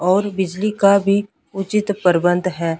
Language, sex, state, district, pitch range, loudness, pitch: Hindi, female, Punjab, Pathankot, 180-205 Hz, -17 LUFS, 195 Hz